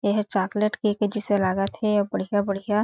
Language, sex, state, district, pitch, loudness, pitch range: Chhattisgarhi, female, Chhattisgarh, Sarguja, 205 Hz, -24 LUFS, 200-210 Hz